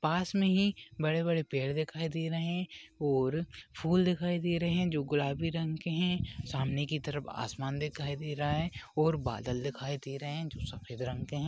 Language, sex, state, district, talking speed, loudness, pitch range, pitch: Hindi, male, Goa, North and South Goa, 210 wpm, -33 LUFS, 140-165 Hz, 150 Hz